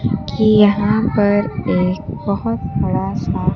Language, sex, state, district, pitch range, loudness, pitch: Hindi, female, Bihar, Kaimur, 205-215 Hz, -17 LUFS, 205 Hz